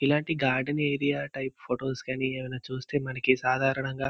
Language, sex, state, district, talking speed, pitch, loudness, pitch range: Telugu, male, Andhra Pradesh, Visakhapatnam, 160 wpm, 135 Hz, -28 LUFS, 130-140 Hz